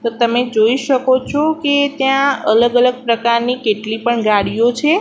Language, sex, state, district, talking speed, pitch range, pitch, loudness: Gujarati, female, Gujarat, Gandhinagar, 165 wpm, 230-270 Hz, 245 Hz, -15 LUFS